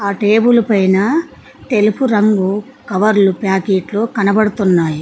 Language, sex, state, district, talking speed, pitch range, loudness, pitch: Telugu, female, Telangana, Mahabubabad, 95 wpm, 195-220 Hz, -14 LUFS, 205 Hz